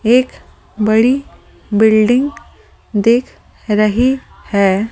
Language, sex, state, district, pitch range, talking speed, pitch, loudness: Hindi, female, Delhi, New Delhi, 215-250 Hz, 75 wpm, 225 Hz, -14 LUFS